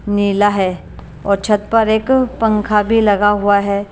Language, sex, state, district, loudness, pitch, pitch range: Hindi, female, Punjab, Kapurthala, -14 LUFS, 205 Hz, 200-220 Hz